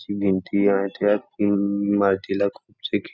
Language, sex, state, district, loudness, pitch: Marathi, male, Maharashtra, Nagpur, -22 LUFS, 100 Hz